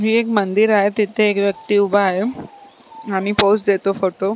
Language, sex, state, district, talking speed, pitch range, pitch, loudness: Marathi, female, Maharashtra, Sindhudurg, 195 wpm, 200-215 Hz, 205 Hz, -17 LUFS